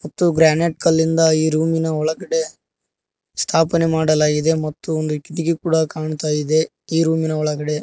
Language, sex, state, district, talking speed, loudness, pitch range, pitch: Kannada, male, Karnataka, Koppal, 145 wpm, -18 LUFS, 155-165 Hz, 160 Hz